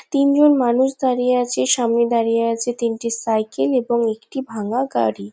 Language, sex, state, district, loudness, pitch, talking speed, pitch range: Bengali, female, West Bengal, Jhargram, -19 LUFS, 235 Hz, 160 wpm, 225-255 Hz